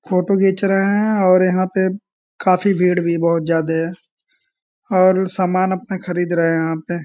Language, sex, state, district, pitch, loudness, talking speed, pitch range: Hindi, male, Bihar, Sitamarhi, 185 Hz, -17 LUFS, 180 wpm, 175-195 Hz